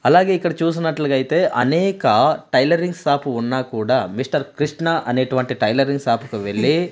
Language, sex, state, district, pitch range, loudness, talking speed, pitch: Telugu, male, Andhra Pradesh, Manyam, 130-165 Hz, -19 LUFS, 120 wpm, 145 Hz